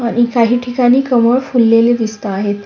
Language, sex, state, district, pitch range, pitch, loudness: Marathi, female, Maharashtra, Sindhudurg, 225-245 Hz, 235 Hz, -13 LUFS